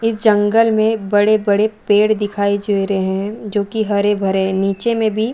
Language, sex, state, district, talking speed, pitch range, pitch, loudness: Hindi, female, Chhattisgarh, Balrampur, 200 wpm, 200-220 Hz, 205 Hz, -16 LUFS